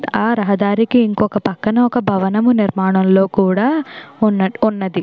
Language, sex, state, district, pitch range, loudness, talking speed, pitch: Telugu, female, Andhra Pradesh, Chittoor, 195-230 Hz, -15 LUFS, 120 wpm, 210 Hz